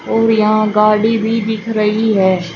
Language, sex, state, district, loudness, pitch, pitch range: Hindi, female, Uttar Pradesh, Shamli, -14 LUFS, 215 Hz, 210-225 Hz